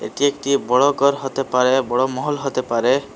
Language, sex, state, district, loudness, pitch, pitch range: Bengali, male, Assam, Hailakandi, -19 LUFS, 135 Hz, 130-140 Hz